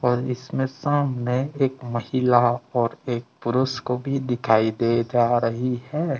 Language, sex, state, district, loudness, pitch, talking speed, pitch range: Hindi, male, Tripura, West Tripura, -23 LUFS, 125 Hz, 145 wpm, 120-130 Hz